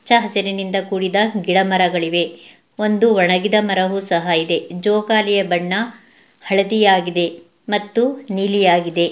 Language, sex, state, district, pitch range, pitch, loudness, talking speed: Kannada, female, Karnataka, Mysore, 180-210 Hz, 195 Hz, -17 LUFS, 110 wpm